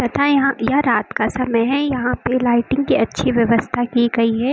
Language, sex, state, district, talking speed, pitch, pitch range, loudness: Hindi, female, Uttar Pradesh, Lucknow, 185 wpm, 245 Hz, 235-275 Hz, -17 LUFS